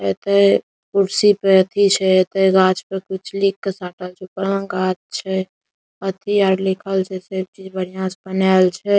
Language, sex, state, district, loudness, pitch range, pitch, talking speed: Maithili, male, Bihar, Saharsa, -18 LUFS, 185-195 Hz, 190 Hz, 180 wpm